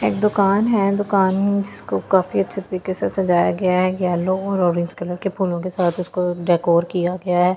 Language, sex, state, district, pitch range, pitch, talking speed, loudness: Hindi, female, Delhi, New Delhi, 175-195 Hz, 185 Hz, 205 wpm, -20 LUFS